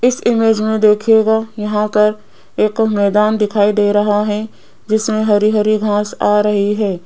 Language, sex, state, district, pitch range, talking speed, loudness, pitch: Hindi, female, Rajasthan, Jaipur, 210-220 Hz, 160 wpm, -14 LUFS, 210 Hz